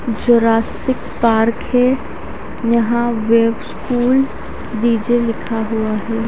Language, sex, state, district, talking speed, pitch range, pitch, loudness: Hindi, female, Haryana, Charkhi Dadri, 95 wpm, 225-240 Hz, 230 Hz, -16 LUFS